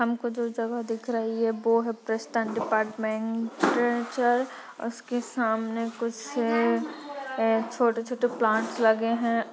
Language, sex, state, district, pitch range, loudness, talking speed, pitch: Hindi, female, Maharashtra, Aurangabad, 225-240 Hz, -27 LUFS, 120 wpm, 230 Hz